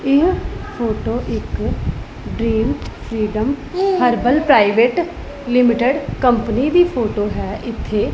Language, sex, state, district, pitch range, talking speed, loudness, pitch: Punjabi, female, Punjab, Pathankot, 230-295 Hz, 105 wpm, -17 LUFS, 250 Hz